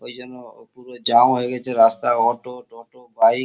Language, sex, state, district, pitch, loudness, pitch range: Bengali, male, West Bengal, Kolkata, 125 Hz, -17 LUFS, 115-125 Hz